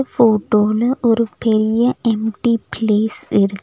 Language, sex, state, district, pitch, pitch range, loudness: Tamil, female, Tamil Nadu, Nilgiris, 220 Hz, 215-235 Hz, -17 LUFS